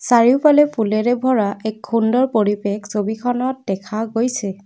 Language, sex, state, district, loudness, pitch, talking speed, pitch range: Assamese, female, Assam, Kamrup Metropolitan, -18 LUFS, 225 Hz, 115 wpm, 210-250 Hz